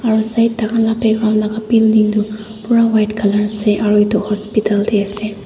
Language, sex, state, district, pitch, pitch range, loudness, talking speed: Nagamese, female, Nagaland, Dimapur, 215 Hz, 210-220 Hz, -15 LUFS, 195 wpm